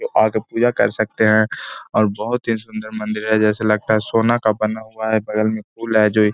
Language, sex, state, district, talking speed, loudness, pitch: Hindi, male, Bihar, Gaya, 245 wpm, -18 LUFS, 110 Hz